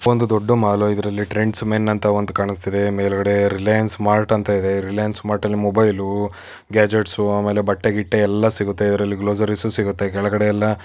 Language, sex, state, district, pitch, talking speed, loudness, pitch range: Kannada, female, Karnataka, Chamarajanagar, 105 Hz, 165 wpm, -19 LUFS, 100-105 Hz